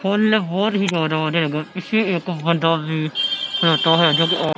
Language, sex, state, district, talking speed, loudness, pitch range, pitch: Punjabi, male, Punjab, Kapurthala, 155 wpm, -19 LUFS, 160-195 Hz, 170 Hz